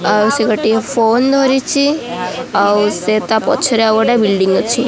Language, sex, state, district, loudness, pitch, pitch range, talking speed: Odia, female, Odisha, Khordha, -13 LUFS, 225 Hz, 215-250 Hz, 170 wpm